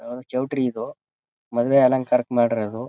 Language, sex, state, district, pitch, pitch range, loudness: Kannada, male, Karnataka, Mysore, 125 Hz, 120-130 Hz, -21 LUFS